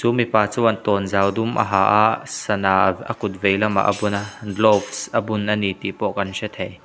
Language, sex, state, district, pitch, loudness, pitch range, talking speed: Mizo, male, Mizoram, Aizawl, 105 Hz, -20 LUFS, 100-110 Hz, 230 wpm